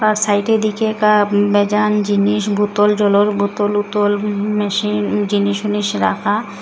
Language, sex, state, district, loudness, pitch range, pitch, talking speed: Bengali, female, Assam, Hailakandi, -16 LUFS, 205-210 Hz, 205 Hz, 135 wpm